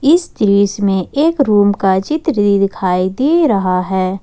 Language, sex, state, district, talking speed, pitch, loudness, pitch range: Hindi, female, Jharkhand, Ranchi, 155 wpm, 200 Hz, -14 LUFS, 190-280 Hz